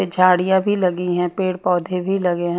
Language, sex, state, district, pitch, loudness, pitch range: Hindi, female, Himachal Pradesh, Shimla, 180 Hz, -19 LUFS, 180-185 Hz